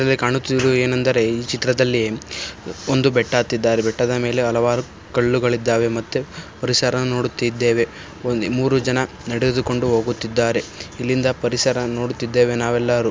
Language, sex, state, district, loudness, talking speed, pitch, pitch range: Kannada, male, Karnataka, Shimoga, -20 LUFS, 120 wpm, 120 Hz, 120-125 Hz